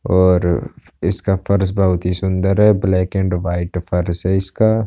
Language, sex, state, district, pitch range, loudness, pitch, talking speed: Hindi, male, Uttar Pradesh, Budaun, 90-95 Hz, -17 LUFS, 95 Hz, 160 wpm